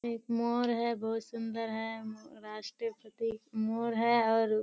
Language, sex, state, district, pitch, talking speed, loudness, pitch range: Hindi, female, Bihar, Kishanganj, 225 Hz, 170 wpm, -33 LUFS, 220-235 Hz